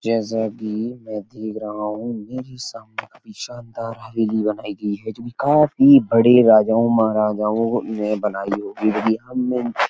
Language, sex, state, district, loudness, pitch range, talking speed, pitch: Hindi, male, Uttar Pradesh, Etah, -19 LUFS, 105-120 Hz, 165 wpm, 110 Hz